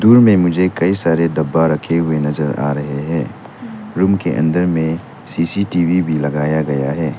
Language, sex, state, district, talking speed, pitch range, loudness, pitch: Hindi, male, Arunachal Pradesh, Lower Dibang Valley, 165 wpm, 75-90 Hz, -16 LUFS, 80 Hz